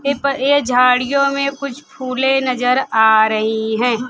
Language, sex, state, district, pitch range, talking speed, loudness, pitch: Hindi, female, Bihar, Kaimur, 245-275 Hz, 160 wpm, -15 LUFS, 255 Hz